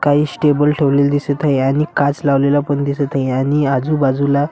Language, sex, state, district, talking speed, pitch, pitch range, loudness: Marathi, male, Maharashtra, Washim, 185 wpm, 140 Hz, 140-145 Hz, -16 LUFS